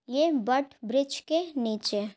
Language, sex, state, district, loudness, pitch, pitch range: Hindi, female, Bihar, Gaya, -28 LUFS, 270 Hz, 225-285 Hz